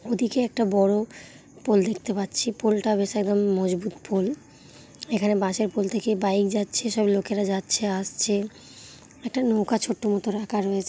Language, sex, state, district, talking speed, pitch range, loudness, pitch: Bengali, female, West Bengal, Kolkata, 170 wpm, 200-220 Hz, -24 LUFS, 210 Hz